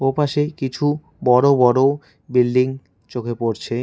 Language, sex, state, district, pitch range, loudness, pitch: Bengali, male, West Bengal, Cooch Behar, 120-145 Hz, -19 LUFS, 130 Hz